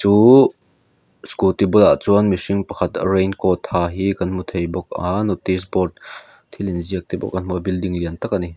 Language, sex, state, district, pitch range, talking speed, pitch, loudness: Mizo, male, Mizoram, Aizawl, 90-100 Hz, 205 wpm, 95 Hz, -18 LUFS